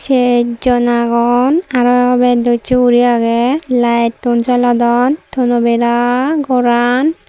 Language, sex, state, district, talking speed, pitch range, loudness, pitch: Chakma, female, Tripura, Dhalai, 100 wpm, 240-250 Hz, -12 LUFS, 245 Hz